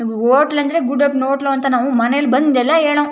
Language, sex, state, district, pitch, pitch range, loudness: Kannada, female, Karnataka, Chamarajanagar, 275 Hz, 255-290 Hz, -15 LUFS